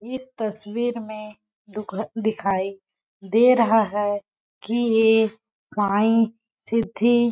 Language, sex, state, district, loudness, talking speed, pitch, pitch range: Hindi, female, Chhattisgarh, Balrampur, -22 LUFS, 105 wpm, 220 Hz, 210-230 Hz